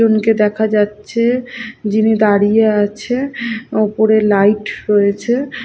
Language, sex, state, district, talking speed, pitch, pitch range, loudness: Bengali, female, Odisha, Khordha, 105 wpm, 215 Hz, 210-235 Hz, -15 LUFS